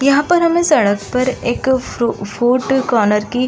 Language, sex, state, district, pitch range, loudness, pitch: Hindi, female, Uttar Pradesh, Muzaffarnagar, 230-275 Hz, -15 LUFS, 255 Hz